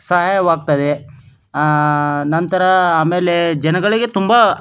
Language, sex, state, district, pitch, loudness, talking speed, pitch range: Kannada, male, Karnataka, Dharwad, 165 Hz, -15 LUFS, 80 wpm, 145-185 Hz